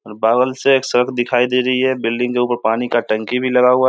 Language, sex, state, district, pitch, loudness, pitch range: Hindi, male, Bihar, Samastipur, 125 Hz, -16 LUFS, 120-130 Hz